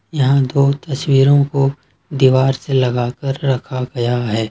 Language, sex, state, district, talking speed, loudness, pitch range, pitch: Hindi, male, Jharkhand, Ranchi, 145 wpm, -16 LUFS, 130-140 Hz, 135 Hz